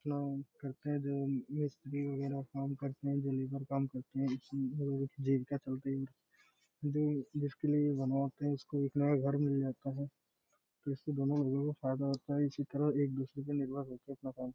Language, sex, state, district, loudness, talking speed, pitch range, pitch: Hindi, male, Bihar, Gopalganj, -37 LUFS, 235 wpm, 135-145 Hz, 140 Hz